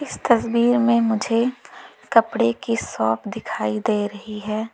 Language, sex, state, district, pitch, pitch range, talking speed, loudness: Hindi, female, Uttar Pradesh, Lalitpur, 225 Hz, 210-235 Hz, 125 wpm, -21 LUFS